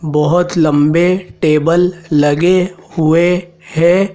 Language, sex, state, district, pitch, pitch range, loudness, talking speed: Hindi, male, Madhya Pradesh, Dhar, 170 Hz, 155-180 Hz, -13 LUFS, 85 wpm